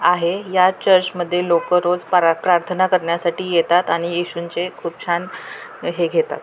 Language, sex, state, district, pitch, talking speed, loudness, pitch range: Marathi, female, Maharashtra, Pune, 175 Hz, 130 wpm, -18 LUFS, 170-185 Hz